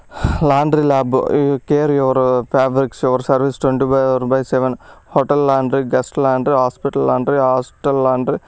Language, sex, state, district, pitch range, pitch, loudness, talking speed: Telugu, male, Andhra Pradesh, Srikakulam, 130-140 Hz, 135 Hz, -16 LUFS, 155 wpm